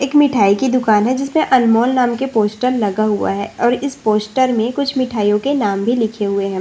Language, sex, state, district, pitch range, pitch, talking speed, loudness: Hindi, female, Chhattisgarh, Bastar, 210-260 Hz, 240 Hz, 225 wpm, -16 LUFS